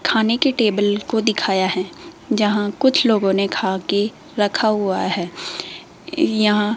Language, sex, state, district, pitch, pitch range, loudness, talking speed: Hindi, female, Rajasthan, Jaipur, 210 Hz, 200-225 Hz, -19 LUFS, 150 wpm